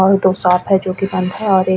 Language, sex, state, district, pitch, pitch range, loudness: Hindi, female, Goa, North and South Goa, 185 Hz, 185-195 Hz, -15 LUFS